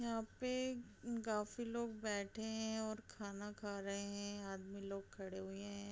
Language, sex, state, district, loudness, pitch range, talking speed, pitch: Hindi, female, Bihar, Sitamarhi, -45 LUFS, 200-225 Hz, 180 wpm, 210 Hz